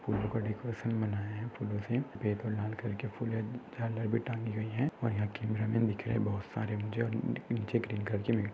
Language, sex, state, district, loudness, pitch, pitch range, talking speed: Hindi, male, Maharashtra, Nagpur, -35 LUFS, 110 Hz, 105-115 Hz, 170 wpm